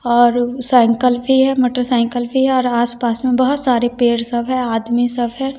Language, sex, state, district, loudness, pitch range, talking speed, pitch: Hindi, female, Bihar, West Champaran, -16 LUFS, 240-255 Hz, 205 wpm, 245 Hz